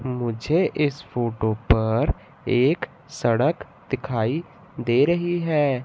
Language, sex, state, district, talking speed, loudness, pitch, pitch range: Hindi, male, Madhya Pradesh, Katni, 105 wpm, -23 LUFS, 130 Hz, 120-160 Hz